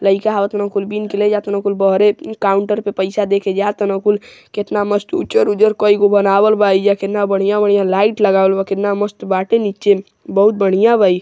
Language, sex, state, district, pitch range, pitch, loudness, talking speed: Hindi, male, Uttar Pradesh, Gorakhpur, 195-210 Hz, 205 Hz, -15 LUFS, 225 wpm